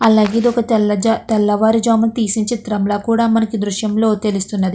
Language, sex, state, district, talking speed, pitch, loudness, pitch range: Telugu, female, Andhra Pradesh, Chittoor, 200 wpm, 220 Hz, -16 LUFS, 210-225 Hz